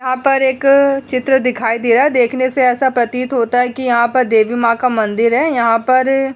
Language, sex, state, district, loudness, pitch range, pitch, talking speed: Hindi, female, Uttar Pradesh, Hamirpur, -14 LUFS, 235-265 Hz, 250 Hz, 235 wpm